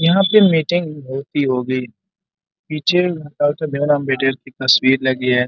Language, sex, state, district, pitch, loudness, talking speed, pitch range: Hindi, male, Uttar Pradesh, Gorakhpur, 145 Hz, -17 LUFS, 140 wpm, 130-175 Hz